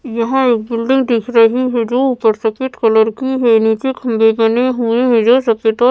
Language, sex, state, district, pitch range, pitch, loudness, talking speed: Hindi, female, Maharashtra, Mumbai Suburban, 225-255 Hz, 235 Hz, -13 LUFS, 215 wpm